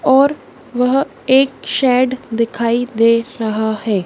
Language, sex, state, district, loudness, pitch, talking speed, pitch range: Hindi, female, Madhya Pradesh, Dhar, -16 LUFS, 245 Hz, 120 wpm, 230-260 Hz